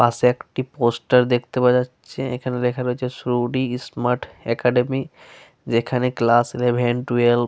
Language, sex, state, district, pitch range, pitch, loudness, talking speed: Bengali, male, Jharkhand, Sahebganj, 120-125 Hz, 125 Hz, -21 LUFS, 145 wpm